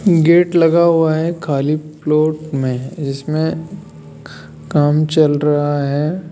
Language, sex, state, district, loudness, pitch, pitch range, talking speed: Hindi, male, Rajasthan, Jaipur, -15 LUFS, 155 Hz, 140-165 Hz, 115 wpm